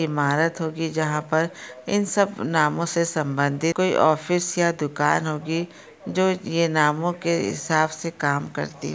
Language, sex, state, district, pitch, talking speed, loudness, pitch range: Hindi, female, Maharashtra, Pune, 160 Hz, 145 wpm, -23 LUFS, 150-170 Hz